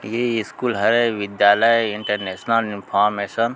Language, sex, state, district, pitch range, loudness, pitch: Chhattisgarhi, male, Chhattisgarh, Sukma, 100-115 Hz, -19 LUFS, 105 Hz